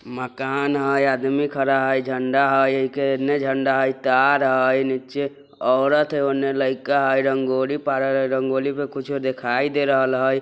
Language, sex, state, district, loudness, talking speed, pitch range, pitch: Bajjika, male, Bihar, Vaishali, -21 LUFS, 165 wpm, 130-140 Hz, 135 Hz